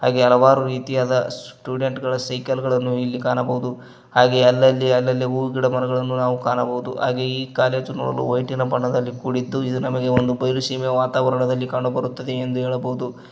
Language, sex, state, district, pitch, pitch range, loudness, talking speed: Kannada, male, Karnataka, Koppal, 125 Hz, 125-130 Hz, -20 LUFS, 155 wpm